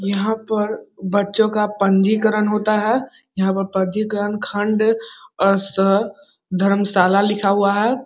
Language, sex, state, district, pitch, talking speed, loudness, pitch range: Hindi, male, Bihar, Muzaffarpur, 205 Hz, 125 wpm, -18 LUFS, 195-215 Hz